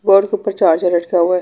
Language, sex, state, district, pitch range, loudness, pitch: Hindi, female, Delhi, New Delhi, 175-195 Hz, -15 LUFS, 180 Hz